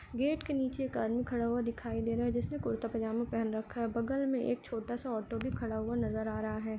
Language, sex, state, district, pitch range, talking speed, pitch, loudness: Hindi, female, Uttar Pradesh, Ghazipur, 225-245 Hz, 255 wpm, 235 Hz, -35 LUFS